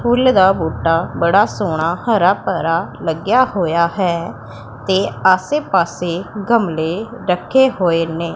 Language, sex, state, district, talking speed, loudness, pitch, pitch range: Punjabi, female, Punjab, Pathankot, 120 wpm, -16 LUFS, 180 Hz, 165-205 Hz